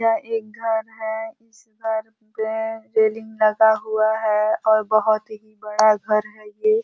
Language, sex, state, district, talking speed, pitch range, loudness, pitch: Hindi, female, Uttar Pradesh, Ghazipur, 160 wpm, 215-225 Hz, -21 LUFS, 220 Hz